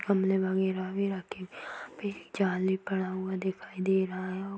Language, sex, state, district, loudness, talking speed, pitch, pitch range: Hindi, female, Bihar, East Champaran, -31 LUFS, 185 wpm, 190 Hz, 185-195 Hz